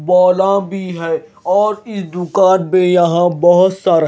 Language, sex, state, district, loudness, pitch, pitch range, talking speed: Hindi, male, Himachal Pradesh, Shimla, -14 LUFS, 180 Hz, 175-190 Hz, 145 wpm